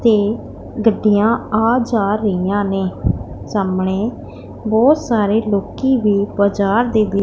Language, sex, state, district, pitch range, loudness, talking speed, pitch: Punjabi, female, Punjab, Pathankot, 200-225 Hz, -17 LUFS, 110 wpm, 210 Hz